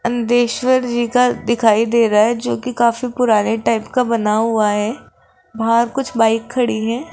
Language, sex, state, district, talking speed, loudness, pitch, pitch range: Hindi, female, Rajasthan, Jaipur, 170 wpm, -16 LUFS, 235 Hz, 225-245 Hz